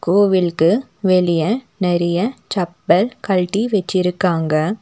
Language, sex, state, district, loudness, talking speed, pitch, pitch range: Tamil, female, Tamil Nadu, Nilgiris, -17 LUFS, 75 wpm, 185 Hz, 175-205 Hz